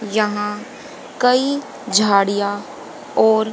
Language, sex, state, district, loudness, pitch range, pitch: Hindi, female, Haryana, Jhajjar, -18 LUFS, 205-240 Hz, 210 Hz